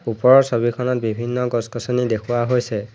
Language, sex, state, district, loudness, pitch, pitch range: Assamese, male, Assam, Hailakandi, -19 LUFS, 120 Hz, 115-125 Hz